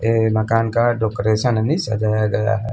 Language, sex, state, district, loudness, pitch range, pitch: Hindi, male, Bihar, Kaimur, -18 LUFS, 110-115 Hz, 110 Hz